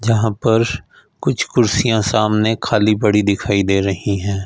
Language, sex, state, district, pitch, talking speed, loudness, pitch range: Hindi, male, Punjab, Fazilka, 105 Hz, 150 wpm, -16 LUFS, 100-110 Hz